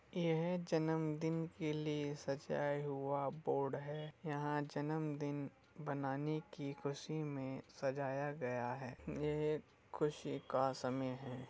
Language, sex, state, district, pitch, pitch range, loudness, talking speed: Hindi, male, Uttar Pradesh, Muzaffarnagar, 145 Hz, 135-155 Hz, -41 LUFS, 115 wpm